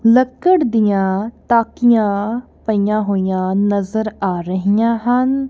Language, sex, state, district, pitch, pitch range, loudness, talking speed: Punjabi, female, Punjab, Kapurthala, 220 Hz, 200-240 Hz, -16 LUFS, 100 wpm